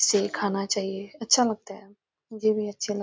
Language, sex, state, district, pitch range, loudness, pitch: Hindi, female, Bihar, Bhagalpur, 200-215 Hz, -26 LUFS, 205 Hz